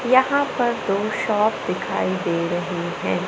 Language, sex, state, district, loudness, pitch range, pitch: Hindi, male, Madhya Pradesh, Katni, -22 LUFS, 175-240 Hz, 210 Hz